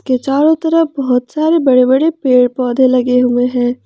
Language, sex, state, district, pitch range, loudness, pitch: Hindi, male, Jharkhand, Ranchi, 250-300 Hz, -12 LUFS, 255 Hz